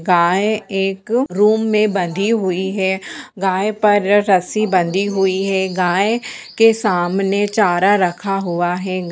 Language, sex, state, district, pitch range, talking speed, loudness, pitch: Hindi, female, Bihar, Jahanabad, 185-210 Hz, 130 wpm, -16 LUFS, 195 Hz